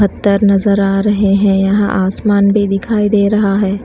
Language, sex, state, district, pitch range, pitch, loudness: Hindi, female, Himachal Pradesh, Shimla, 195-205 Hz, 200 Hz, -12 LUFS